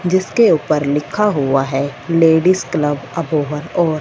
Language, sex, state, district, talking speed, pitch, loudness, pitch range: Hindi, female, Punjab, Fazilka, 150 wpm, 155 Hz, -16 LUFS, 145-175 Hz